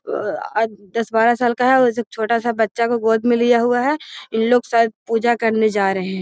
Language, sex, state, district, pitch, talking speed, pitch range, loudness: Magahi, female, Bihar, Gaya, 230 Hz, 210 wpm, 225-240 Hz, -18 LUFS